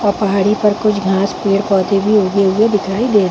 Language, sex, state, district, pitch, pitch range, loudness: Hindi, female, Chhattisgarh, Bilaspur, 200 Hz, 195-210 Hz, -14 LUFS